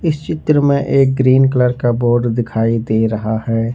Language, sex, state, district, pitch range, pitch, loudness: Hindi, male, Jharkhand, Ranchi, 115-135 Hz, 120 Hz, -15 LUFS